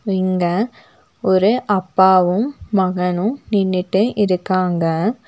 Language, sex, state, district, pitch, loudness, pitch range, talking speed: Tamil, female, Tamil Nadu, Nilgiris, 190 Hz, -17 LUFS, 185-210 Hz, 70 wpm